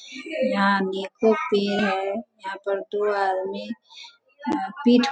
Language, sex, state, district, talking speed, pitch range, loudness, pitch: Hindi, female, Bihar, Sitamarhi, 105 wpm, 195-265 Hz, -24 LUFS, 210 Hz